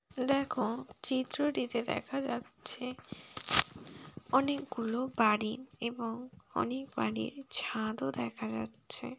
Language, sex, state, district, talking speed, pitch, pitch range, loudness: Bengali, female, West Bengal, Malda, 80 wpm, 245 Hz, 220-260 Hz, -34 LUFS